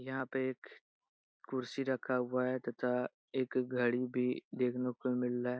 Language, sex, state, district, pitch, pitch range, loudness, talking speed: Hindi, male, Bihar, Jahanabad, 125 Hz, 125-130 Hz, -36 LUFS, 170 wpm